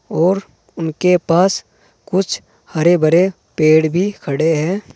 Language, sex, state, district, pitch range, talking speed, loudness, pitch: Hindi, male, Uttar Pradesh, Saharanpur, 160-185 Hz, 120 wpm, -16 LUFS, 175 Hz